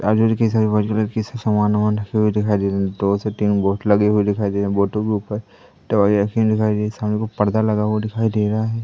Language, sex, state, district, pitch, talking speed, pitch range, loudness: Hindi, male, Madhya Pradesh, Katni, 105 Hz, 265 wpm, 105-110 Hz, -19 LUFS